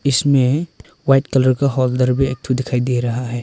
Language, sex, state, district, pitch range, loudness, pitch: Hindi, male, Arunachal Pradesh, Longding, 125-140 Hz, -17 LUFS, 130 Hz